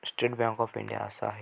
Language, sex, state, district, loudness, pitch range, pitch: Marathi, male, Maharashtra, Sindhudurg, -31 LUFS, 110-120 Hz, 115 Hz